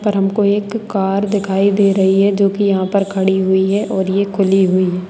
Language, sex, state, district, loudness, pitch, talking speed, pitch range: Hindi, female, Bihar, Jamui, -15 LUFS, 195 Hz, 235 wpm, 190-200 Hz